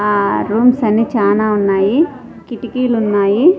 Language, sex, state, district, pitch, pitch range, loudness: Telugu, female, Andhra Pradesh, Sri Satya Sai, 220 Hz, 205-250 Hz, -14 LUFS